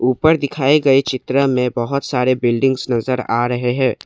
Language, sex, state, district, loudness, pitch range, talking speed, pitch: Hindi, male, Assam, Kamrup Metropolitan, -17 LUFS, 125-135 Hz, 175 wpm, 130 Hz